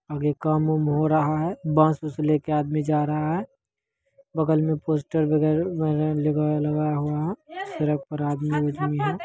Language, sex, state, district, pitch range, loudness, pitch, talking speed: Maithili, male, Bihar, Begusarai, 150-155 Hz, -24 LUFS, 155 Hz, 180 wpm